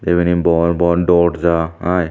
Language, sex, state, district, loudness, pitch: Chakma, male, Tripura, Dhalai, -15 LUFS, 85 Hz